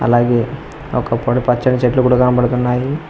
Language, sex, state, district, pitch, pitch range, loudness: Telugu, male, Telangana, Mahabubabad, 125 Hz, 120-125 Hz, -15 LUFS